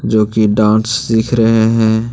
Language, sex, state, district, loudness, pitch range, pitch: Hindi, male, Jharkhand, Deoghar, -12 LUFS, 110-115 Hz, 110 Hz